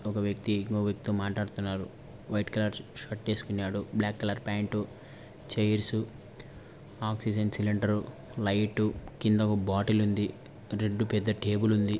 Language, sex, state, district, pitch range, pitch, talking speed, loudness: Telugu, male, Andhra Pradesh, Anantapur, 105-110 Hz, 105 Hz, 125 wpm, -31 LUFS